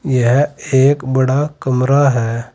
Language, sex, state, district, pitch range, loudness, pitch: Hindi, male, Uttar Pradesh, Saharanpur, 125-145 Hz, -14 LUFS, 130 Hz